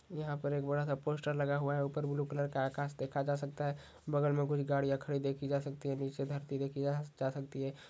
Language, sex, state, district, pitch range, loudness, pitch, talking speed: Hindi, male, Maharashtra, Nagpur, 140-145 Hz, -37 LUFS, 140 Hz, 245 wpm